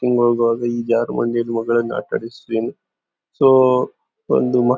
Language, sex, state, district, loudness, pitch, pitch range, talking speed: Kannada, male, Karnataka, Dakshina Kannada, -18 LUFS, 120 Hz, 115-125 Hz, 40 wpm